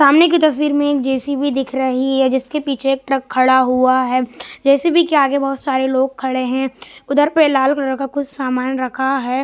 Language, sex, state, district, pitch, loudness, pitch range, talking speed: Hindi, male, Bihar, West Champaran, 270 Hz, -16 LUFS, 260-285 Hz, 210 wpm